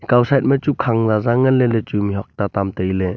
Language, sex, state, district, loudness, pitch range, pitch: Wancho, male, Arunachal Pradesh, Longding, -18 LUFS, 100-130 Hz, 115 Hz